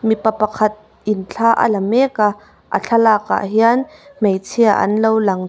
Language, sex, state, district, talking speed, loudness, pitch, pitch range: Mizo, female, Mizoram, Aizawl, 165 wpm, -16 LUFS, 215 Hz, 205-230 Hz